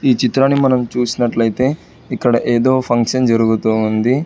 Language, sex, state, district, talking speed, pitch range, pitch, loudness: Telugu, male, Telangana, Hyderabad, 115 wpm, 115-130 Hz, 125 Hz, -15 LUFS